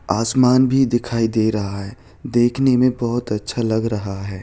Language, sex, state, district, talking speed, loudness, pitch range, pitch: Hindi, male, Chhattisgarh, Bilaspur, 175 wpm, -18 LUFS, 105-125 Hz, 115 Hz